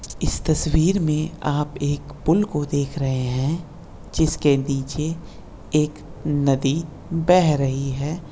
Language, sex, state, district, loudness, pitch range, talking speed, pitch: Hindi, male, Chhattisgarh, Balrampur, -22 LUFS, 140-160 Hz, 120 wpm, 150 Hz